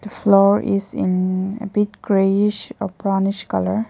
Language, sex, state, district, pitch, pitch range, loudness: English, female, Nagaland, Kohima, 200 Hz, 195-210 Hz, -19 LUFS